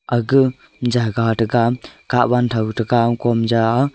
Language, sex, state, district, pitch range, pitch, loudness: Wancho, male, Arunachal Pradesh, Longding, 115-125 Hz, 120 Hz, -18 LUFS